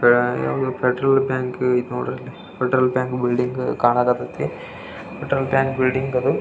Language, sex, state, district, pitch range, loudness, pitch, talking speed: Kannada, male, Karnataka, Belgaum, 125-130 Hz, -21 LUFS, 125 Hz, 45 wpm